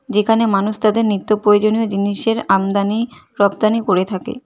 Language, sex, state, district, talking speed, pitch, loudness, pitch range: Bengali, female, West Bengal, Cooch Behar, 120 wpm, 215 Hz, -16 LUFS, 200-225 Hz